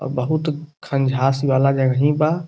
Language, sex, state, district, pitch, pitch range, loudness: Bhojpuri, male, Uttar Pradesh, Gorakhpur, 140 Hz, 135-155 Hz, -19 LUFS